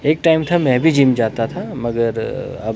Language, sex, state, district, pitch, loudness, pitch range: Hindi, male, Himachal Pradesh, Shimla, 130 Hz, -17 LUFS, 115-160 Hz